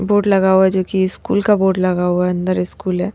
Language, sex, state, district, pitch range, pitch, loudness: Hindi, female, Haryana, Rohtak, 180-195 Hz, 190 Hz, -16 LUFS